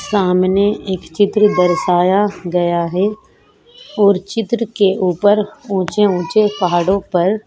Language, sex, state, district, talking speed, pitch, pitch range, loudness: Hindi, female, Uttarakhand, Tehri Garhwal, 110 wpm, 195 Hz, 180-210 Hz, -15 LUFS